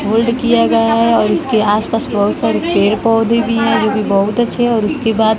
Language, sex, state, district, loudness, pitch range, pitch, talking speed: Hindi, female, Bihar, West Champaran, -13 LUFS, 215-230 Hz, 225 Hz, 220 wpm